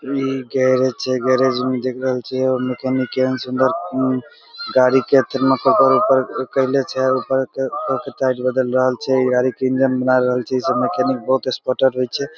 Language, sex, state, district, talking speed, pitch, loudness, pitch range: Maithili, male, Bihar, Begusarai, 180 wpm, 130 Hz, -18 LUFS, 130-135 Hz